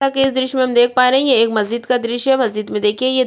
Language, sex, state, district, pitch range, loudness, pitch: Hindi, female, Chhattisgarh, Kabirdham, 235-260 Hz, -15 LUFS, 250 Hz